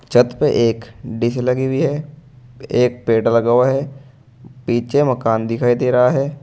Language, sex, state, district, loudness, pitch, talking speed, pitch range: Hindi, male, Uttar Pradesh, Saharanpur, -17 LUFS, 125 Hz, 170 wpm, 120-135 Hz